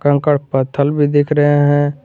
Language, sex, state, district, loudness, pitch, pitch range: Hindi, male, Jharkhand, Garhwa, -14 LUFS, 145 Hz, 140-145 Hz